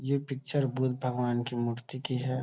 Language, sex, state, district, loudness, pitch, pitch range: Hindi, male, Bihar, Gopalganj, -32 LUFS, 130 Hz, 125-135 Hz